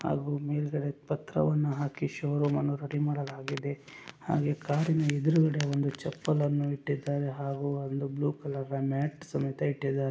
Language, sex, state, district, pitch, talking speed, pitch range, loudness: Kannada, male, Karnataka, Chamarajanagar, 145 Hz, 130 wpm, 140-150 Hz, -31 LUFS